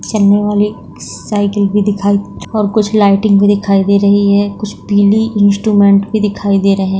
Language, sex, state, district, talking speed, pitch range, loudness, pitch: Hindi, female, Bihar, Saharsa, 165 wpm, 200-210 Hz, -12 LUFS, 205 Hz